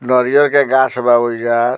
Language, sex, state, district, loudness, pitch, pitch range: Bhojpuri, male, Bihar, Muzaffarpur, -13 LUFS, 125 Hz, 120-130 Hz